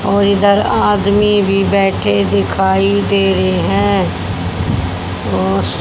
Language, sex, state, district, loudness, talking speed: Hindi, male, Haryana, Jhajjar, -14 LUFS, 105 wpm